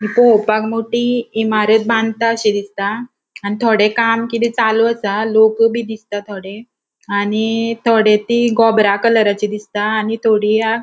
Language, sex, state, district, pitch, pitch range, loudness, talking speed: Konkani, female, Goa, North and South Goa, 220 Hz, 210-230 Hz, -15 LUFS, 140 wpm